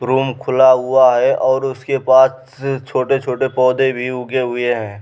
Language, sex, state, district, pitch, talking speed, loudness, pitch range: Hindi, male, Uttar Pradesh, Muzaffarnagar, 130 Hz, 155 wpm, -15 LUFS, 125-135 Hz